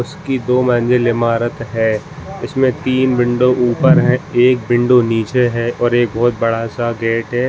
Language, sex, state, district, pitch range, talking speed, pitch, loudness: Hindi, male, Jharkhand, Jamtara, 115-125 Hz, 160 wpm, 120 Hz, -15 LUFS